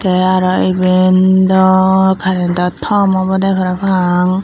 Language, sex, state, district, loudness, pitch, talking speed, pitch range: Chakma, female, Tripura, Unakoti, -12 LUFS, 185 Hz, 110 wpm, 185-190 Hz